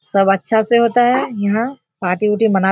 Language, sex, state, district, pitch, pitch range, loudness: Hindi, female, Bihar, Kishanganj, 215 Hz, 195-235 Hz, -16 LUFS